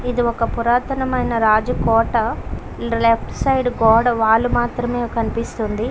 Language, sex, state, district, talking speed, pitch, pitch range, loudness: Telugu, female, Karnataka, Bellary, 110 wpm, 235 Hz, 225-245 Hz, -18 LUFS